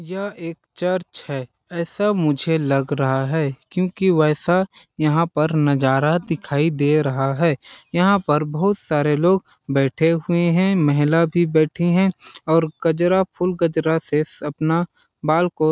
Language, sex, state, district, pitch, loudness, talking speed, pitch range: Hindi, male, Chhattisgarh, Balrampur, 165 Hz, -20 LUFS, 155 wpm, 150-175 Hz